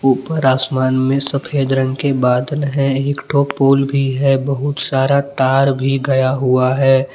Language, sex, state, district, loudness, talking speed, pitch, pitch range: Hindi, male, Jharkhand, Palamu, -15 LUFS, 170 wpm, 135 Hz, 130-140 Hz